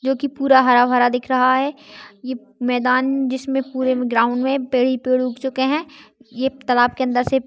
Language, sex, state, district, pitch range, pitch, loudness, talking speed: Hindi, female, Maharashtra, Sindhudurg, 250-265 Hz, 260 Hz, -18 LUFS, 200 wpm